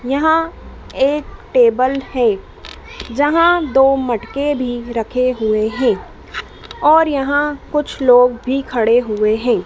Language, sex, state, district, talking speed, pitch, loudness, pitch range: Hindi, female, Madhya Pradesh, Dhar, 120 wpm, 265 Hz, -16 LUFS, 240-295 Hz